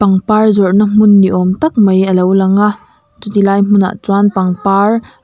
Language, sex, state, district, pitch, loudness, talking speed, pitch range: Mizo, female, Mizoram, Aizawl, 200 Hz, -11 LUFS, 185 wpm, 190-210 Hz